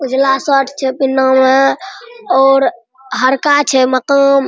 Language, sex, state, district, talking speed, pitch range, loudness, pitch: Maithili, female, Bihar, Araria, 120 wpm, 265-275 Hz, -12 LUFS, 270 Hz